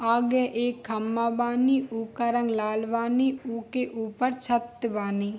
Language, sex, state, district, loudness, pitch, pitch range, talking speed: Hindi, female, Bihar, Darbhanga, -27 LUFS, 235 Hz, 225-250 Hz, 155 wpm